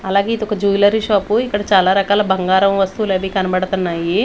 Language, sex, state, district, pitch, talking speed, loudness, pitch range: Telugu, female, Andhra Pradesh, Manyam, 195 Hz, 155 wpm, -16 LUFS, 190-205 Hz